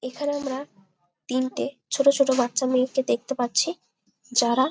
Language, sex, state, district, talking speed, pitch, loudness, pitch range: Bengali, female, West Bengal, Malda, 140 wpm, 260 Hz, -24 LUFS, 245-275 Hz